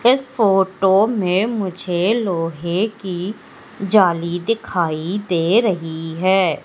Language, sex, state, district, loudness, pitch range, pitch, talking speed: Hindi, female, Madhya Pradesh, Umaria, -18 LUFS, 175-210 Hz, 190 Hz, 100 wpm